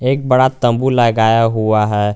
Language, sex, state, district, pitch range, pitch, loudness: Hindi, male, Jharkhand, Garhwa, 110-130 Hz, 115 Hz, -14 LUFS